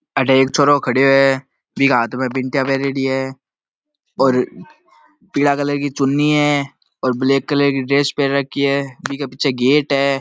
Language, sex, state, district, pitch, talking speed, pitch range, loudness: Marwari, male, Rajasthan, Nagaur, 140 Hz, 170 wpm, 135-140 Hz, -17 LUFS